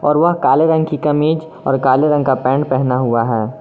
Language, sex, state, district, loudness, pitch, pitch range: Hindi, male, Jharkhand, Garhwa, -15 LUFS, 145 Hz, 130-160 Hz